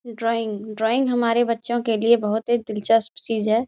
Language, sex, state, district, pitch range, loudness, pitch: Hindi, female, Bihar, Jahanabad, 220-235 Hz, -22 LUFS, 230 Hz